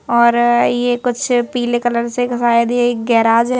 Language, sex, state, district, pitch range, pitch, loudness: Hindi, female, Madhya Pradesh, Bhopal, 235-245 Hz, 240 Hz, -15 LUFS